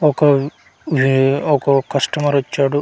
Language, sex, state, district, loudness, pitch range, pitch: Telugu, male, Andhra Pradesh, Manyam, -16 LUFS, 135-145 Hz, 140 Hz